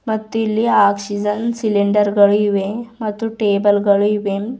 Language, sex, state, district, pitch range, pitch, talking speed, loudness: Kannada, female, Karnataka, Bidar, 205-220 Hz, 210 Hz, 115 wpm, -17 LUFS